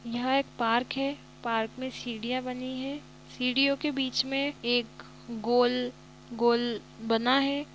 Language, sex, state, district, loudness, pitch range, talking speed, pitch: Hindi, female, Bihar, East Champaran, -29 LUFS, 235-270 Hz, 140 wpm, 250 Hz